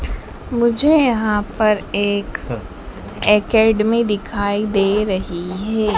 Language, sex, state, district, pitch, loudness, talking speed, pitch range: Hindi, female, Madhya Pradesh, Dhar, 210 Hz, -17 LUFS, 90 wpm, 205-225 Hz